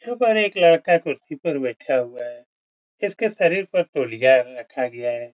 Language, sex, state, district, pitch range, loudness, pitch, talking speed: Hindi, male, Uttar Pradesh, Etah, 125-190 Hz, -21 LUFS, 165 Hz, 170 wpm